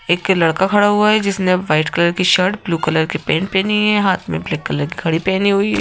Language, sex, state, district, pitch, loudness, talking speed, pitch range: Hindi, female, Madhya Pradesh, Bhopal, 185 Hz, -16 LUFS, 260 wpm, 160-200 Hz